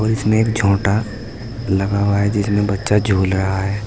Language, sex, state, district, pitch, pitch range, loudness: Hindi, male, Uttar Pradesh, Saharanpur, 105 Hz, 100-110 Hz, -17 LUFS